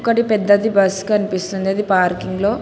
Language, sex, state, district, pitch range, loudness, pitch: Telugu, female, Telangana, Hyderabad, 190-210 Hz, -17 LUFS, 200 Hz